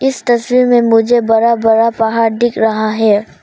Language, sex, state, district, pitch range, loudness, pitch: Hindi, female, Arunachal Pradesh, Papum Pare, 225-240 Hz, -12 LUFS, 230 Hz